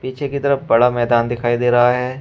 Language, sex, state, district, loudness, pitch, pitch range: Hindi, male, Uttar Pradesh, Shamli, -16 LUFS, 125 Hz, 120-130 Hz